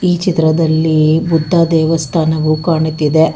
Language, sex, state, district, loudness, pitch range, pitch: Kannada, female, Karnataka, Bangalore, -13 LUFS, 155-165 Hz, 160 Hz